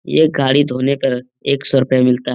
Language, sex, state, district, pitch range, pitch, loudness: Hindi, male, Bihar, Lakhisarai, 125-140 Hz, 135 Hz, -15 LUFS